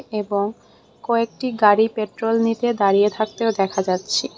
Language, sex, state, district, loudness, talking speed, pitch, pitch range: Bengali, female, Tripura, West Tripura, -20 LUFS, 125 wpm, 215 Hz, 200-230 Hz